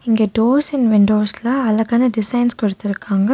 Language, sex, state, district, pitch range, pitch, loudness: Tamil, female, Tamil Nadu, Nilgiris, 210-245 Hz, 225 Hz, -15 LUFS